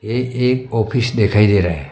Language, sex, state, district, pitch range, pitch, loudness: Hindi, male, Arunachal Pradesh, Longding, 105-125 Hz, 115 Hz, -16 LUFS